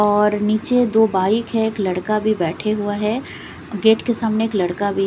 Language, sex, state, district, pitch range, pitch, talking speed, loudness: Hindi, female, Punjab, Fazilka, 200-220 Hz, 215 Hz, 215 wpm, -19 LUFS